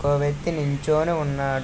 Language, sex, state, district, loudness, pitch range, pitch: Telugu, male, Andhra Pradesh, Visakhapatnam, -24 LUFS, 140-155 Hz, 145 Hz